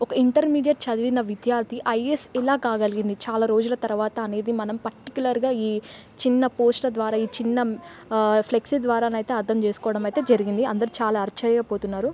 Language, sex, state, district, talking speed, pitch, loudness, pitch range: Telugu, female, Telangana, Nalgonda, 155 wpm, 230 Hz, -23 LUFS, 215-250 Hz